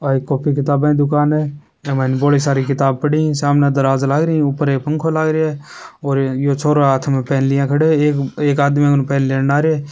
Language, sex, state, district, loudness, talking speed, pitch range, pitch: Hindi, male, Rajasthan, Churu, -16 LUFS, 240 wpm, 140-150 Hz, 145 Hz